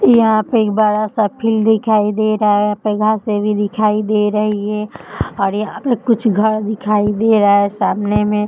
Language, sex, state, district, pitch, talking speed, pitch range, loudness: Hindi, female, Uttar Pradesh, Budaun, 215 Hz, 190 wpm, 210-220 Hz, -15 LUFS